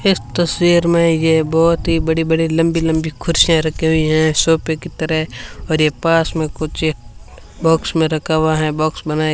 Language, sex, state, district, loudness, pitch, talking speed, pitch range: Hindi, female, Rajasthan, Bikaner, -16 LUFS, 160 Hz, 195 wpm, 155-165 Hz